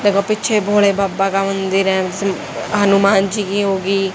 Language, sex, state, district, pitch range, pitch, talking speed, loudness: Hindi, female, Haryana, Jhajjar, 195-205 Hz, 195 Hz, 160 wpm, -16 LUFS